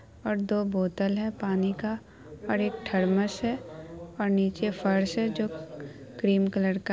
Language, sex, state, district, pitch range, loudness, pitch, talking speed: Hindi, female, Bihar, Araria, 185-210 Hz, -28 LUFS, 195 Hz, 145 wpm